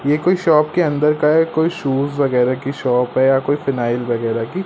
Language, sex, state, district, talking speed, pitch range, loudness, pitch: Hindi, male, Madhya Pradesh, Katni, 245 wpm, 125-155 Hz, -17 LUFS, 140 Hz